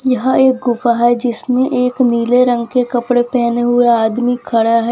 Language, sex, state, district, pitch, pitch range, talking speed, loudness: Hindi, female, Gujarat, Valsad, 245 Hz, 235-250 Hz, 185 wpm, -14 LUFS